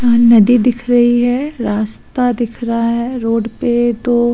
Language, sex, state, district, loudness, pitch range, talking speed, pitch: Hindi, female, Uttar Pradesh, Hamirpur, -14 LUFS, 230-245 Hz, 165 wpm, 240 Hz